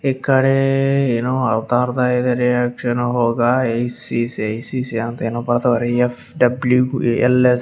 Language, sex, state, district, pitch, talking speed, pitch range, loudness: Kannada, male, Karnataka, Raichur, 125 Hz, 95 wpm, 120-125 Hz, -18 LUFS